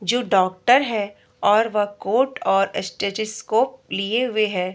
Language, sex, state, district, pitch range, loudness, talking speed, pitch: Hindi, female, Bihar, Sitamarhi, 195-240 Hz, -21 LUFS, 140 wpm, 215 Hz